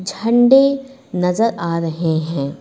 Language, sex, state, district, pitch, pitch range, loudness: Hindi, female, Uttar Pradesh, Lucknow, 185 Hz, 165-240 Hz, -16 LUFS